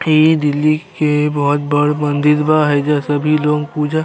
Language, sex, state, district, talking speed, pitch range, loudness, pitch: Bhojpuri, male, Uttar Pradesh, Deoria, 180 wpm, 145-155 Hz, -15 LUFS, 150 Hz